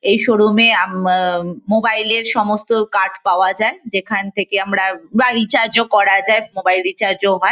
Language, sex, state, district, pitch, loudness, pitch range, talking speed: Bengali, female, West Bengal, Kolkata, 200 Hz, -15 LUFS, 190-220 Hz, 185 wpm